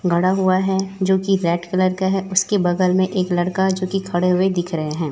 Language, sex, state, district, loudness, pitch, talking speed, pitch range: Hindi, female, Chhattisgarh, Raipur, -19 LUFS, 185 Hz, 245 wpm, 175-190 Hz